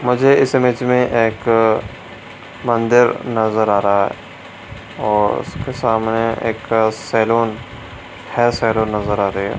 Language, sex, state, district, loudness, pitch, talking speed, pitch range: Hindi, male, Bihar, Supaul, -16 LUFS, 115 Hz, 130 wpm, 110-120 Hz